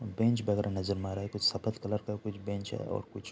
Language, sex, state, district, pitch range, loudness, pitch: Hindi, male, Bihar, Saharsa, 100-110 Hz, -33 LUFS, 105 Hz